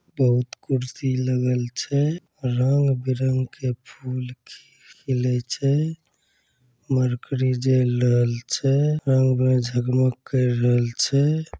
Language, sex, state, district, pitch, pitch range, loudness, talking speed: Angika, male, Bihar, Begusarai, 130 Hz, 125-135 Hz, -22 LUFS, 105 wpm